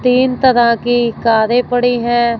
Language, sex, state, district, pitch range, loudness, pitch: Hindi, female, Punjab, Fazilka, 235-245 Hz, -13 LUFS, 240 Hz